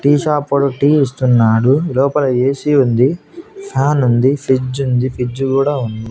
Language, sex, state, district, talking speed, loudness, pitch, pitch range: Telugu, male, Andhra Pradesh, Annamaya, 145 wpm, -14 LUFS, 135 Hz, 130-145 Hz